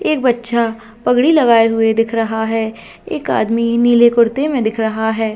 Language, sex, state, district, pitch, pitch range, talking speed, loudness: Hindi, female, Jharkhand, Jamtara, 230 Hz, 225-240 Hz, 180 wpm, -15 LUFS